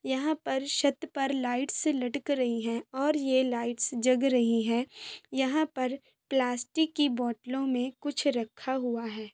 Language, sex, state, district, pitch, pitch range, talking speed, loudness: Hindi, female, Bihar, Sitamarhi, 260 Hz, 245-285 Hz, 160 wpm, -29 LUFS